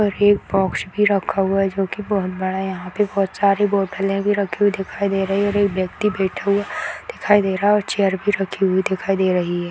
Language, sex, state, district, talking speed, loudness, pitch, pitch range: Hindi, female, Bihar, Madhepura, 260 wpm, -20 LUFS, 195 Hz, 190-205 Hz